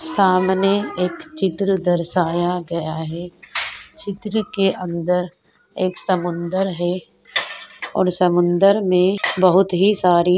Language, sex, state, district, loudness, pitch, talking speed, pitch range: Hindi, female, Uttarakhand, Tehri Garhwal, -19 LUFS, 180 Hz, 110 wpm, 175-195 Hz